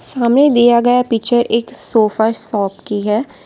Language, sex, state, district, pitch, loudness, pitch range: Hindi, female, Gujarat, Valsad, 235 Hz, -14 LUFS, 220-245 Hz